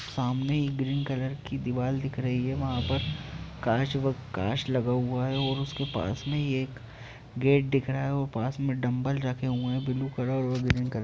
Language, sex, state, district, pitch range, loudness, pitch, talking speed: Hindi, male, Bihar, Jamui, 125-135 Hz, -29 LUFS, 130 Hz, 215 wpm